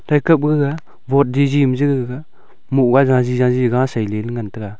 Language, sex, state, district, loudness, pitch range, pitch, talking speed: Wancho, male, Arunachal Pradesh, Longding, -16 LUFS, 120-140 Hz, 130 Hz, 190 wpm